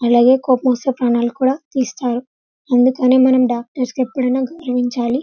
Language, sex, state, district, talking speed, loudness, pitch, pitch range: Telugu, female, Telangana, Karimnagar, 140 wpm, -16 LUFS, 255 Hz, 245-260 Hz